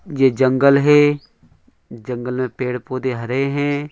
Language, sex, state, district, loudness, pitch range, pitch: Hindi, male, Bihar, Begusarai, -18 LUFS, 125-145 Hz, 130 Hz